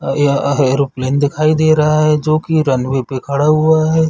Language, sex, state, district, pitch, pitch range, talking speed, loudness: Hindi, male, Chhattisgarh, Bilaspur, 145 Hz, 135-155 Hz, 205 wpm, -14 LUFS